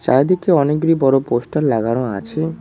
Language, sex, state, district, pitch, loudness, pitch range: Bengali, male, West Bengal, Cooch Behar, 140 Hz, -17 LUFS, 120-160 Hz